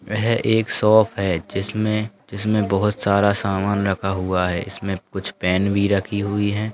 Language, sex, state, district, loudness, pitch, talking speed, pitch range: Hindi, male, Bihar, Bhagalpur, -20 LUFS, 100 Hz, 160 wpm, 95-105 Hz